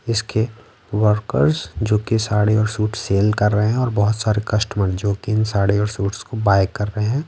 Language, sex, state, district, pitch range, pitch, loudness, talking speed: Hindi, male, Bihar, Patna, 100-110 Hz, 105 Hz, -19 LUFS, 215 wpm